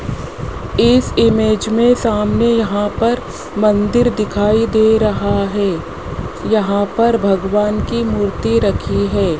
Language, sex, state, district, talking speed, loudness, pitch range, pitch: Hindi, male, Rajasthan, Jaipur, 115 wpm, -15 LUFS, 195-225 Hz, 210 Hz